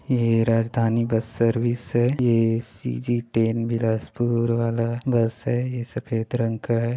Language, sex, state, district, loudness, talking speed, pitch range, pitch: Hindi, male, Chhattisgarh, Bilaspur, -23 LUFS, 145 wpm, 115-120 Hz, 115 Hz